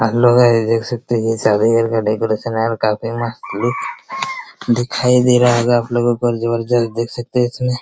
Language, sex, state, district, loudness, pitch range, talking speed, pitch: Hindi, male, Bihar, Araria, -16 LUFS, 115-125 Hz, 220 wpm, 120 Hz